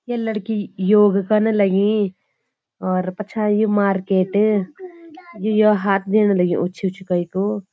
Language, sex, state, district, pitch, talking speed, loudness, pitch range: Garhwali, female, Uttarakhand, Uttarkashi, 205 Hz, 140 wpm, -19 LUFS, 190-215 Hz